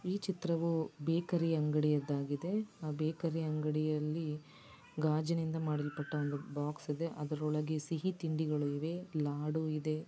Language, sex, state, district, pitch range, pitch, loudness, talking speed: Kannada, female, Karnataka, Dakshina Kannada, 150-165 Hz, 155 Hz, -36 LUFS, 105 wpm